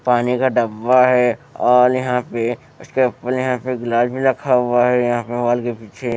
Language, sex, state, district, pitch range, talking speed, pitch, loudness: Hindi, male, Bihar, West Champaran, 120-125 Hz, 205 wpm, 125 Hz, -17 LUFS